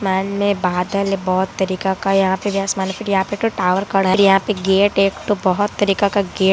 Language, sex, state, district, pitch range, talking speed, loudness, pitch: Hindi, female, Bihar, Kishanganj, 190-200 Hz, 275 wpm, -17 LUFS, 195 Hz